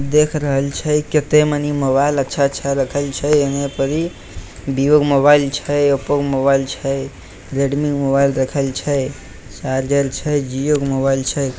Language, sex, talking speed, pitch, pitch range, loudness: Maithili, male, 160 wpm, 140 Hz, 135-145 Hz, -17 LUFS